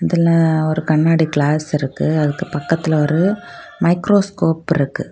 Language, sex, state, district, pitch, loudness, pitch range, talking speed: Tamil, female, Tamil Nadu, Kanyakumari, 160 Hz, -17 LUFS, 155-170 Hz, 115 wpm